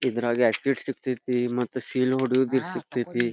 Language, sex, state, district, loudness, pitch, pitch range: Kannada, male, Karnataka, Belgaum, -26 LUFS, 130 Hz, 120-130 Hz